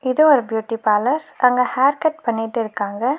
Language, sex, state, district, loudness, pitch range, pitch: Tamil, female, Tamil Nadu, Nilgiris, -18 LUFS, 225-275 Hz, 250 Hz